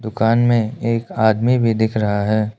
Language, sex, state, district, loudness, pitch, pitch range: Hindi, male, Arunachal Pradesh, Lower Dibang Valley, -17 LUFS, 110 Hz, 110-115 Hz